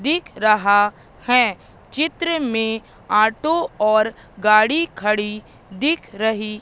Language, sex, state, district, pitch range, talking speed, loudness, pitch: Hindi, female, Madhya Pradesh, Katni, 210-290 Hz, 100 wpm, -19 LUFS, 220 Hz